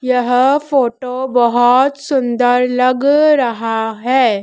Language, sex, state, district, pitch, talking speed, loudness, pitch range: Hindi, female, Madhya Pradesh, Dhar, 250 Hz, 95 wpm, -14 LUFS, 245-265 Hz